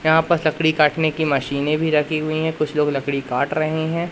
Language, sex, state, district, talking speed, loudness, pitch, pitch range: Hindi, male, Madhya Pradesh, Katni, 235 wpm, -20 LUFS, 155 Hz, 150-160 Hz